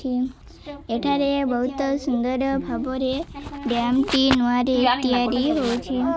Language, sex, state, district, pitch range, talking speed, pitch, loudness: Odia, female, Odisha, Malkangiri, 245-275 Hz, 95 wpm, 260 Hz, -22 LUFS